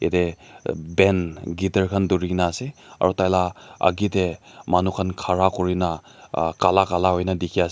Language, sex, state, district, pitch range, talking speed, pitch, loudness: Nagamese, male, Nagaland, Dimapur, 90-95 Hz, 140 wpm, 90 Hz, -22 LUFS